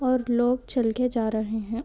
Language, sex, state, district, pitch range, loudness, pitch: Hindi, female, Rajasthan, Nagaur, 225-250 Hz, -25 LUFS, 240 Hz